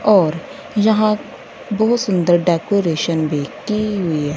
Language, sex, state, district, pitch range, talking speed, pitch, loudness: Hindi, female, Punjab, Fazilka, 165-215 Hz, 125 wpm, 200 Hz, -17 LUFS